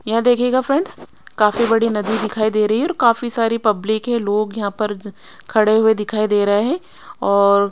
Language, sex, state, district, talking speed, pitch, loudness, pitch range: Hindi, female, Odisha, Sambalpur, 195 wpm, 220 Hz, -17 LUFS, 210-235 Hz